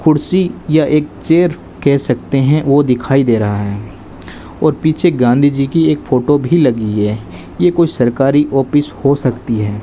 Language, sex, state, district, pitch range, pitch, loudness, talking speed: Hindi, male, Rajasthan, Bikaner, 110-150 Hz, 135 Hz, -13 LUFS, 170 wpm